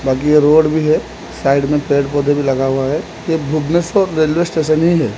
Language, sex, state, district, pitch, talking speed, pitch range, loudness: Hindi, male, Odisha, Khordha, 150 Hz, 220 wpm, 140-160 Hz, -15 LUFS